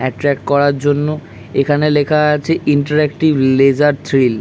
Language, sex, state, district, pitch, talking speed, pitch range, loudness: Bengali, male, West Bengal, Kolkata, 145 Hz, 135 wpm, 135-150 Hz, -14 LUFS